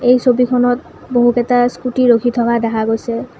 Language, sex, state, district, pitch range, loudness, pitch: Assamese, female, Assam, Kamrup Metropolitan, 235-250 Hz, -15 LUFS, 245 Hz